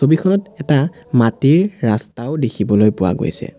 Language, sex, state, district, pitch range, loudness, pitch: Assamese, male, Assam, Sonitpur, 110-160 Hz, -16 LUFS, 135 Hz